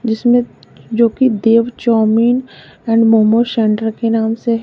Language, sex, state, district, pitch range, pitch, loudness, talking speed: Hindi, female, Uttar Pradesh, Lalitpur, 225-235 Hz, 230 Hz, -14 LUFS, 155 wpm